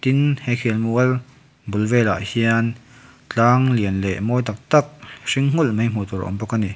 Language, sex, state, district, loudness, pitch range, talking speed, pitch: Mizo, male, Mizoram, Aizawl, -20 LUFS, 110-130 Hz, 195 wpm, 120 Hz